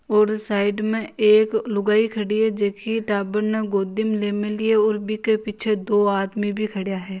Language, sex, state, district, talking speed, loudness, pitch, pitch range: Marwari, female, Rajasthan, Nagaur, 175 wpm, -21 LUFS, 210 Hz, 205-220 Hz